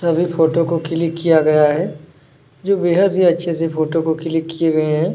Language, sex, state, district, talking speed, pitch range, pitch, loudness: Hindi, male, Chhattisgarh, Kabirdham, 210 wpm, 155-170 Hz, 165 Hz, -17 LUFS